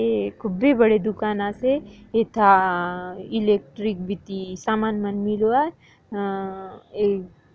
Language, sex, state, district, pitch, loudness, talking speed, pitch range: Halbi, female, Chhattisgarh, Bastar, 205 Hz, -22 LUFS, 120 wpm, 190-220 Hz